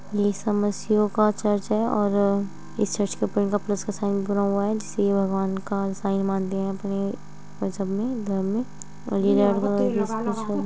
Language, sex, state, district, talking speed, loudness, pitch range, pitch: Hindi, female, Uttar Pradesh, Muzaffarnagar, 180 wpm, -24 LUFS, 195-210 Hz, 200 Hz